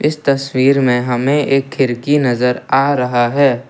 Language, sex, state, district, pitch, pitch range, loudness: Hindi, male, Assam, Kamrup Metropolitan, 135 Hz, 125-140 Hz, -14 LUFS